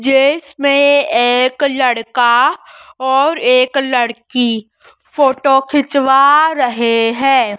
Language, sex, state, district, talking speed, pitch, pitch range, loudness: Hindi, male, Madhya Pradesh, Dhar, 80 wpm, 270 Hz, 245-285 Hz, -13 LUFS